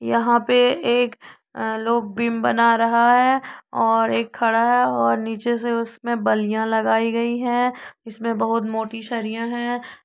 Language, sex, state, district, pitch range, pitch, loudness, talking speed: Hindi, female, Uttar Pradesh, Budaun, 225-240 Hz, 230 Hz, -20 LUFS, 150 wpm